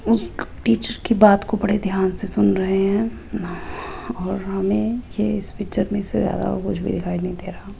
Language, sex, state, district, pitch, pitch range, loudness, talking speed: Hindi, female, Rajasthan, Jaipur, 200 Hz, 190-215 Hz, -21 LUFS, 200 wpm